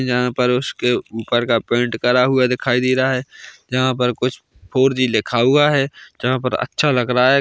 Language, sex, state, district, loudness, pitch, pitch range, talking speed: Hindi, male, Chhattisgarh, Bilaspur, -18 LUFS, 125 Hz, 125-130 Hz, 210 wpm